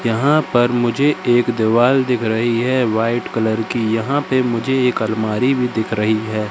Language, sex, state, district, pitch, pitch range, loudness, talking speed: Hindi, male, Madhya Pradesh, Katni, 120 Hz, 110-125 Hz, -17 LUFS, 185 wpm